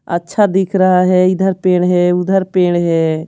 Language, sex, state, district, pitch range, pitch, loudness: Hindi, female, Bihar, Patna, 175-190 Hz, 180 Hz, -13 LUFS